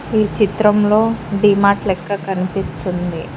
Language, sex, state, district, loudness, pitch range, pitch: Telugu, female, Telangana, Mahabubabad, -16 LUFS, 185-210 Hz, 200 Hz